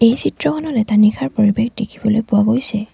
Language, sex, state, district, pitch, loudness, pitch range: Assamese, female, Assam, Sonitpur, 220 Hz, -16 LUFS, 210-235 Hz